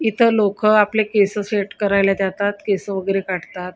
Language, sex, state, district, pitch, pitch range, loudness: Marathi, female, Maharashtra, Gondia, 205 Hz, 195-210 Hz, -18 LUFS